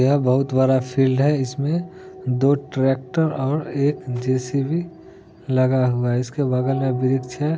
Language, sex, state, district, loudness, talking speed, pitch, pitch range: Hindi, male, Bihar, Muzaffarpur, -21 LUFS, 150 wpm, 135 Hz, 130-145 Hz